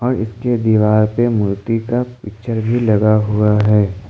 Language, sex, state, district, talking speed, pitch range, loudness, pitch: Hindi, male, Jharkhand, Ranchi, 145 wpm, 105-120 Hz, -15 LUFS, 110 Hz